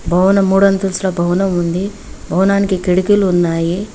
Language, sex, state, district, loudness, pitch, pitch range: Telugu, female, Telangana, Hyderabad, -14 LUFS, 190 Hz, 175-195 Hz